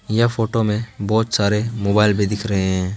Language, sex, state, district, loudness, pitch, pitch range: Hindi, male, West Bengal, Alipurduar, -19 LUFS, 105 Hz, 100-110 Hz